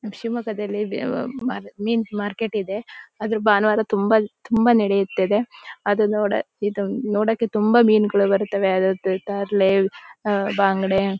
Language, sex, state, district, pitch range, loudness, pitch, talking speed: Kannada, female, Karnataka, Shimoga, 200-220 Hz, -21 LUFS, 210 Hz, 115 wpm